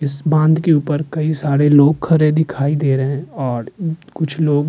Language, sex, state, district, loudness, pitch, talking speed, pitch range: Hindi, male, Uttarakhand, Tehri Garhwal, -16 LUFS, 150 Hz, 205 wpm, 140-160 Hz